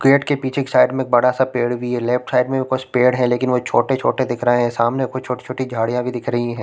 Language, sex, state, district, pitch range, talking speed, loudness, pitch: Hindi, male, Chhattisgarh, Raigarh, 120-130 Hz, 290 wpm, -18 LUFS, 125 Hz